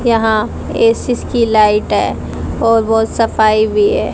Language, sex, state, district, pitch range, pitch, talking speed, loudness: Hindi, female, Haryana, Jhajjar, 215-230 Hz, 225 Hz, 145 wpm, -13 LUFS